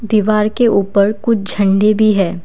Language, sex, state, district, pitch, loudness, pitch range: Hindi, female, Assam, Kamrup Metropolitan, 210 Hz, -13 LUFS, 200-215 Hz